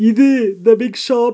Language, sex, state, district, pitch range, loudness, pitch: Tamil, male, Tamil Nadu, Nilgiris, 225-250 Hz, -14 LUFS, 235 Hz